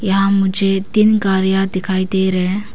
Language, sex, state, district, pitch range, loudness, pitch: Hindi, female, Arunachal Pradesh, Papum Pare, 190-195 Hz, -15 LUFS, 195 Hz